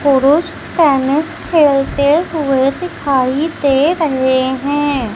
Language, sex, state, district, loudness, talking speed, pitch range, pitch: Hindi, female, Madhya Pradesh, Umaria, -14 LUFS, 95 wpm, 270-310 Hz, 285 Hz